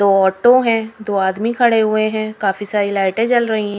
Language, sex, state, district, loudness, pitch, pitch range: Hindi, female, Haryana, Rohtak, -16 LUFS, 215 Hz, 200-230 Hz